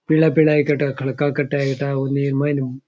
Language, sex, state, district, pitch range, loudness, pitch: Rajasthani, male, Rajasthan, Churu, 135-150 Hz, -19 LUFS, 140 Hz